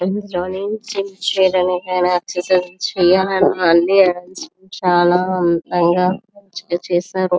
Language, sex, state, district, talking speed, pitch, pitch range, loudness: Telugu, female, Andhra Pradesh, Visakhapatnam, 40 wpm, 180 Hz, 180-190 Hz, -17 LUFS